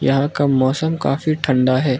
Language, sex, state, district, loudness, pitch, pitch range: Hindi, male, Arunachal Pradesh, Lower Dibang Valley, -18 LUFS, 140 Hz, 130-155 Hz